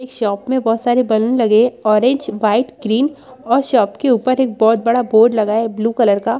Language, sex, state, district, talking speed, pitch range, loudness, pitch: Hindi, female, Chhattisgarh, Rajnandgaon, 215 wpm, 220-255 Hz, -15 LUFS, 230 Hz